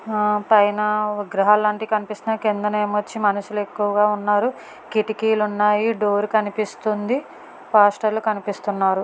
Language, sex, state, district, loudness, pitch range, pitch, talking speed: Telugu, female, Telangana, Karimnagar, -20 LUFS, 205-215 Hz, 210 Hz, 115 wpm